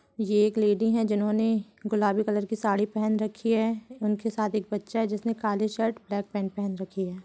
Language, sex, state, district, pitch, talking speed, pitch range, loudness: Hindi, female, Bihar, Supaul, 215 Hz, 205 wpm, 205-220 Hz, -27 LUFS